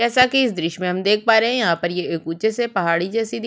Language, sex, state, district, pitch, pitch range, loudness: Hindi, female, Chhattisgarh, Sukma, 210 Hz, 170-235 Hz, -19 LUFS